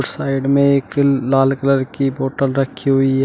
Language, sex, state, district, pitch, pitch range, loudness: Hindi, male, Uttar Pradesh, Shamli, 135 Hz, 135-140 Hz, -17 LUFS